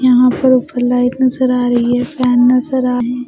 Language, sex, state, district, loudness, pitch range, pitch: Hindi, female, Bihar, West Champaran, -13 LUFS, 245-255 Hz, 250 Hz